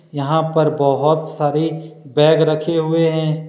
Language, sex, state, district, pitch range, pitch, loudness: Hindi, male, Jharkhand, Deoghar, 150-160 Hz, 155 Hz, -17 LUFS